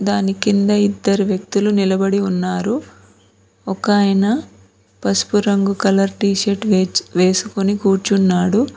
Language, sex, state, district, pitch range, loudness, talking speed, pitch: Telugu, female, Telangana, Mahabubabad, 190-205 Hz, -17 LUFS, 95 wpm, 200 Hz